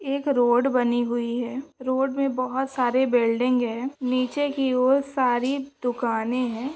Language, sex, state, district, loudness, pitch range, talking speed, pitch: Hindi, female, Maharashtra, Pune, -24 LUFS, 245-270 Hz, 150 wpm, 255 Hz